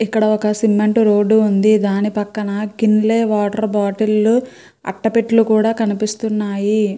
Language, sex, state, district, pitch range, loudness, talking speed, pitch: Telugu, female, Andhra Pradesh, Srikakulam, 210-220 Hz, -16 LUFS, 95 wpm, 215 Hz